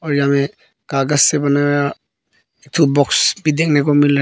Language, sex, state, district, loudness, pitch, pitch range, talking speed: Hindi, male, Arunachal Pradesh, Papum Pare, -15 LUFS, 145 Hz, 140-150 Hz, 215 wpm